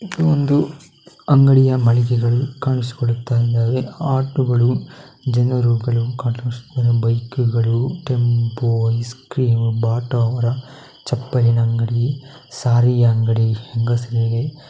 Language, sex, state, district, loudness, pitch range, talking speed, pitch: Kannada, male, Karnataka, Dakshina Kannada, -18 LUFS, 115-130 Hz, 80 wpm, 120 Hz